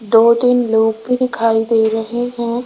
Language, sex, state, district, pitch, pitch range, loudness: Hindi, female, Rajasthan, Jaipur, 230 Hz, 225-245 Hz, -15 LUFS